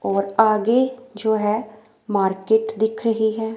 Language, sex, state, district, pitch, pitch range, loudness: Hindi, female, Himachal Pradesh, Shimla, 220 Hz, 210-220 Hz, -20 LUFS